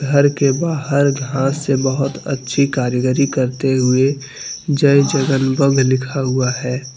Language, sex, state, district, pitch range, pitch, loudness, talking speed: Hindi, male, Jharkhand, Deoghar, 130-140 Hz, 135 Hz, -17 LUFS, 140 wpm